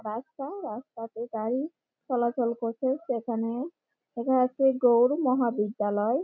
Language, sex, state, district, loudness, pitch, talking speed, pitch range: Bengali, female, West Bengal, Malda, -28 LUFS, 240 Hz, 105 wpm, 230-260 Hz